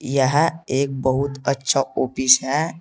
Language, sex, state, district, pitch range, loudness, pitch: Hindi, male, Uttar Pradesh, Saharanpur, 130-140 Hz, -20 LUFS, 135 Hz